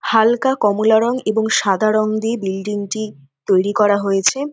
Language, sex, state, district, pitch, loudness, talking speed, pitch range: Bengali, female, West Bengal, North 24 Parganas, 215 Hz, -17 LUFS, 160 wpm, 200-220 Hz